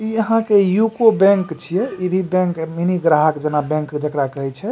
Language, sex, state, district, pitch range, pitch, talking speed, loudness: Maithili, male, Bihar, Supaul, 150-200 Hz, 180 Hz, 205 wpm, -17 LUFS